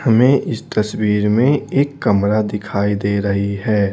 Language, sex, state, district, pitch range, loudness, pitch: Hindi, male, Bihar, Patna, 100-125 Hz, -17 LUFS, 105 Hz